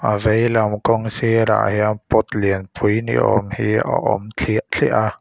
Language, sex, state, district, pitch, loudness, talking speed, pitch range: Mizo, male, Mizoram, Aizawl, 110 Hz, -18 LUFS, 175 wpm, 105-115 Hz